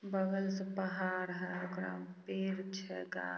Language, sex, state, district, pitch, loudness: Hindi, female, Bihar, Samastipur, 185 Hz, -39 LUFS